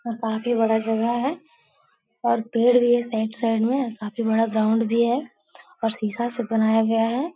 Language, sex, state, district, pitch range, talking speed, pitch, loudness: Hindi, female, Bihar, Supaul, 225-240 Hz, 195 wpm, 230 Hz, -22 LUFS